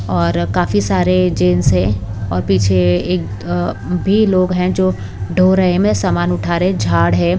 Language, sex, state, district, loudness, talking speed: Hindi, female, Bihar, West Champaran, -15 LUFS, 195 wpm